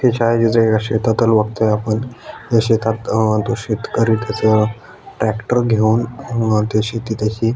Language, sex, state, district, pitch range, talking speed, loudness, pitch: Marathi, male, Maharashtra, Aurangabad, 110-115 Hz, 125 wpm, -17 LUFS, 110 Hz